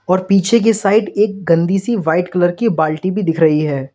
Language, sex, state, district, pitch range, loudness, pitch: Hindi, male, Uttar Pradesh, Lalitpur, 165-210 Hz, -15 LUFS, 185 Hz